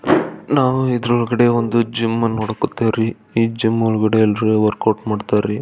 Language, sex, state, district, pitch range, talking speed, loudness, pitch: Kannada, male, Karnataka, Belgaum, 110-120 Hz, 130 wpm, -17 LUFS, 115 Hz